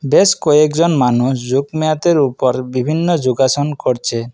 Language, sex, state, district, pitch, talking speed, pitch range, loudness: Bengali, male, Assam, Kamrup Metropolitan, 140 Hz, 110 wpm, 125-155 Hz, -15 LUFS